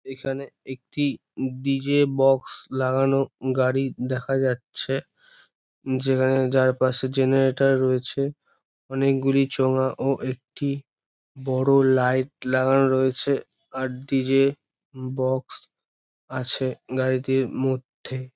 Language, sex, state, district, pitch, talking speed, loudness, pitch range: Bengali, male, West Bengal, Dakshin Dinajpur, 130 Hz, 90 wpm, -23 LUFS, 130-135 Hz